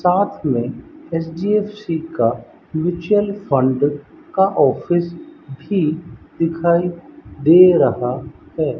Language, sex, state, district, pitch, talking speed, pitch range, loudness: Hindi, male, Rajasthan, Bikaner, 165 Hz, 90 wpm, 145-180 Hz, -18 LUFS